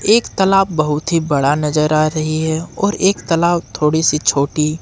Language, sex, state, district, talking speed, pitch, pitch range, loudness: Hindi, male, Jharkhand, Ranchi, 185 wpm, 155 Hz, 150-175 Hz, -16 LUFS